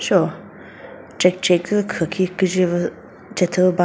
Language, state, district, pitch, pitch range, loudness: Chakhesang, Nagaland, Dimapur, 185 Hz, 180-190 Hz, -19 LUFS